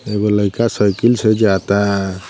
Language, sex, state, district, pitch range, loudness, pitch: Bhojpuri, male, Uttar Pradesh, Ghazipur, 100-110 Hz, -15 LUFS, 105 Hz